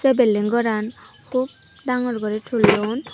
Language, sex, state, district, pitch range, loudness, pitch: Chakma, female, Tripura, Unakoti, 215-250 Hz, -21 LUFS, 235 Hz